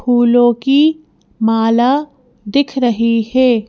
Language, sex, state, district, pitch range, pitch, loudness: Hindi, female, Madhya Pradesh, Bhopal, 230-275 Hz, 245 Hz, -14 LUFS